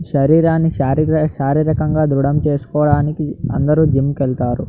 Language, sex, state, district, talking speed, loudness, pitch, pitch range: Telugu, male, Andhra Pradesh, Anantapur, 115 wpm, -16 LUFS, 150 Hz, 140-155 Hz